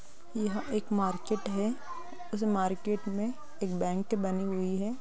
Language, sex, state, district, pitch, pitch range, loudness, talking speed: Hindi, female, Bihar, East Champaran, 210 Hz, 190-220 Hz, -33 LUFS, 145 wpm